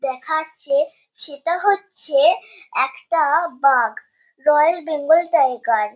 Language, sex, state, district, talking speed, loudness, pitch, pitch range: Bengali, female, West Bengal, Kolkata, 90 wpm, -19 LUFS, 315 Hz, 275-340 Hz